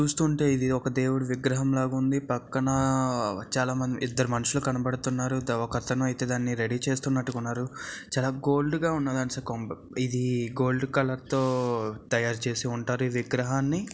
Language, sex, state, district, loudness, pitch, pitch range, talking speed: Telugu, male, Andhra Pradesh, Visakhapatnam, -28 LUFS, 130 Hz, 125-135 Hz, 140 wpm